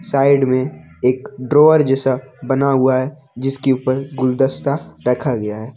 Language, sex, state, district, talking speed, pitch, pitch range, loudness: Hindi, male, Jharkhand, Deoghar, 145 wpm, 130 Hz, 130-140 Hz, -17 LUFS